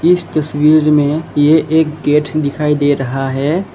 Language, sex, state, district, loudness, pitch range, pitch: Hindi, male, Assam, Kamrup Metropolitan, -13 LUFS, 145-155 Hz, 150 Hz